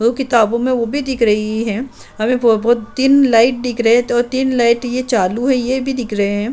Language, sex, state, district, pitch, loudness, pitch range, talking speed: Hindi, female, Uttar Pradesh, Muzaffarnagar, 240 Hz, -15 LUFS, 225-255 Hz, 250 wpm